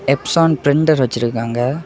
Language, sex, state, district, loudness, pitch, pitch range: Tamil, male, Tamil Nadu, Kanyakumari, -16 LUFS, 140 Hz, 120-155 Hz